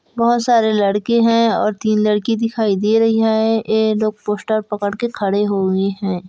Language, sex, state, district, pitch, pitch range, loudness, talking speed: Hindi, female, Chhattisgarh, Kabirdham, 215 Hz, 205-225 Hz, -17 LUFS, 190 wpm